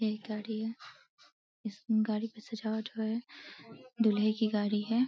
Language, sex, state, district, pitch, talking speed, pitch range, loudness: Hindi, female, Uttar Pradesh, Deoria, 220 Hz, 165 wpm, 215-225 Hz, -33 LUFS